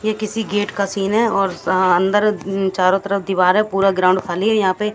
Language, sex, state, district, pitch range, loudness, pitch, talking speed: Hindi, female, Haryana, Jhajjar, 185-210 Hz, -17 LUFS, 195 Hz, 230 wpm